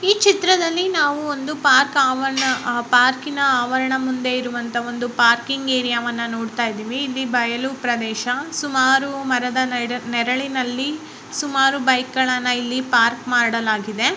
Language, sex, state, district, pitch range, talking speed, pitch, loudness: Kannada, female, Karnataka, Raichur, 240-270 Hz, 115 wpm, 255 Hz, -19 LUFS